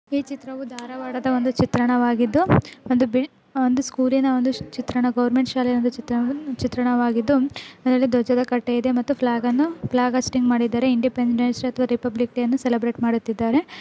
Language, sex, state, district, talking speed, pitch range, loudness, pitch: Kannada, female, Karnataka, Dharwad, 140 wpm, 245-260 Hz, -21 LUFS, 250 Hz